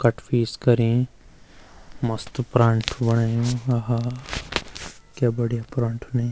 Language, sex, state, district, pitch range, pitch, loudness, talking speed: Garhwali, male, Uttarakhand, Uttarkashi, 115-125 Hz, 120 Hz, -23 LUFS, 115 wpm